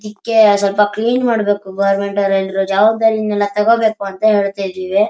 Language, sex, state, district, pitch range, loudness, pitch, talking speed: Kannada, male, Karnataka, Shimoga, 200-220 Hz, -15 LUFS, 205 Hz, 165 wpm